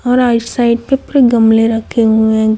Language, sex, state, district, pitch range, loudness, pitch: Hindi, female, Chhattisgarh, Raipur, 225-245 Hz, -12 LUFS, 235 Hz